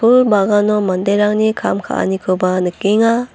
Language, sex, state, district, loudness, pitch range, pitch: Garo, female, Meghalaya, North Garo Hills, -15 LUFS, 190-220 Hz, 205 Hz